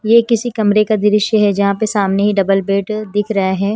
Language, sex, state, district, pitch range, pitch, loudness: Hindi, female, Himachal Pradesh, Shimla, 200-215 Hz, 210 Hz, -14 LUFS